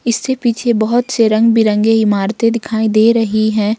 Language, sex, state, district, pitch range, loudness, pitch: Hindi, female, Jharkhand, Ranchi, 215-235 Hz, -13 LUFS, 225 Hz